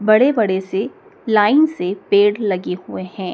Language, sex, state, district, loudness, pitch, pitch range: Hindi, female, Madhya Pradesh, Dhar, -17 LUFS, 205 Hz, 190-230 Hz